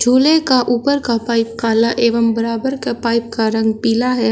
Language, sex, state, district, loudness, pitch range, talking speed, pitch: Hindi, male, Uttar Pradesh, Shamli, -16 LUFS, 230-250 Hz, 195 wpm, 235 Hz